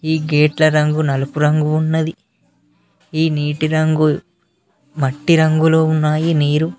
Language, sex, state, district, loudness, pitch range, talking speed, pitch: Telugu, male, Telangana, Mahabubabad, -16 LUFS, 150-160 Hz, 115 wpm, 155 Hz